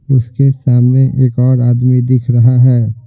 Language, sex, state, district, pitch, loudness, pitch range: Hindi, male, Bihar, Patna, 125 Hz, -11 LUFS, 120-130 Hz